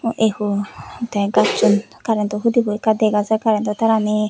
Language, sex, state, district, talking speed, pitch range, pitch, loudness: Chakma, female, Tripura, West Tripura, 170 wpm, 210-225 Hz, 215 Hz, -18 LUFS